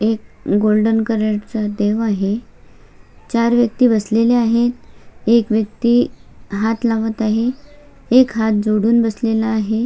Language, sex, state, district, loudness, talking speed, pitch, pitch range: Marathi, female, Maharashtra, Solapur, -17 LUFS, 130 wpm, 225 Hz, 215-235 Hz